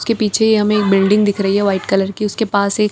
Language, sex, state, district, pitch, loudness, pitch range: Hindi, female, Bihar, Katihar, 205 Hz, -15 LUFS, 200-215 Hz